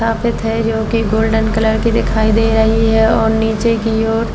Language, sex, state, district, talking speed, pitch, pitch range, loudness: Hindi, female, Maharashtra, Chandrapur, 195 wpm, 225 Hz, 220-225 Hz, -14 LUFS